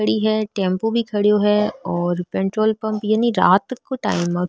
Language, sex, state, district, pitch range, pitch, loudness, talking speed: Rajasthani, female, Rajasthan, Nagaur, 185-220 Hz, 210 Hz, -19 LUFS, 185 wpm